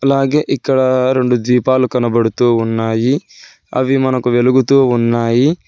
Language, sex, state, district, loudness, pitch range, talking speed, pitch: Telugu, male, Telangana, Hyderabad, -14 LUFS, 120-135 Hz, 105 wpm, 130 Hz